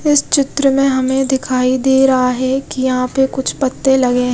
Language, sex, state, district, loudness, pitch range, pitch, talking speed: Hindi, female, Odisha, Khordha, -14 LUFS, 255-270 Hz, 265 Hz, 195 wpm